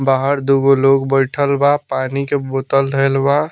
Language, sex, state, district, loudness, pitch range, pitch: Bhojpuri, male, Bihar, Muzaffarpur, -15 LUFS, 135-140 Hz, 135 Hz